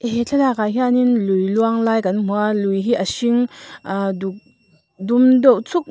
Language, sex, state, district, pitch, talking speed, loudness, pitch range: Mizo, female, Mizoram, Aizawl, 225 Hz, 185 wpm, -17 LUFS, 195-250 Hz